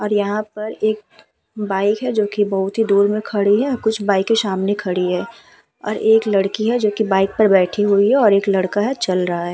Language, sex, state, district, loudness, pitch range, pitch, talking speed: Hindi, female, Uttar Pradesh, Hamirpur, -17 LUFS, 195-215 Hz, 205 Hz, 220 wpm